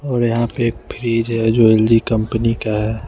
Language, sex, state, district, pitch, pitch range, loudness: Hindi, male, Bihar, West Champaran, 115 Hz, 110-115 Hz, -17 LUFS